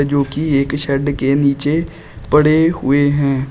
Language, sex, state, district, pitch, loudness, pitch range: Hindi, male, Uttar Pradesh, Shamli, 145 Hz, -15 LUFS, 140-150 Hz